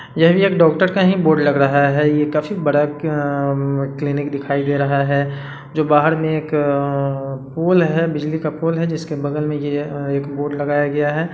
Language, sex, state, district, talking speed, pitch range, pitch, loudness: Hindi, male, Bihar, Sitamarhi, 190 wpm, 140-155 Hz, 145 Hz, -18 LUFS